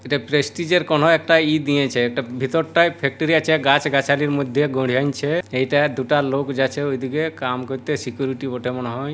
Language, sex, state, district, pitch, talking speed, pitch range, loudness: Bengali, male, West Bengal, Purulia, 140 Hz, 175 wpm, 130-155 Hz, -20 LUFS